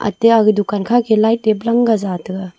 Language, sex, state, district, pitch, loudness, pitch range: Wancho, female, Arunachal Pradesh, Longding, 215 Hz, -15 LUFS, 200-230 Hz